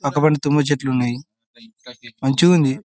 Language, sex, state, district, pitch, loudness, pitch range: Telugu, male, Telangana, Karimnagar, 135 Hz, -18 LUFS, 125-150 Hz